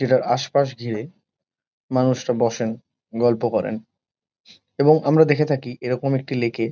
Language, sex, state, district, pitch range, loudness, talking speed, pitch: Bengali, male, West Bengal, Kolkata, 120-140 Hz, -21 LUFS, 135 wpm, 125 Hz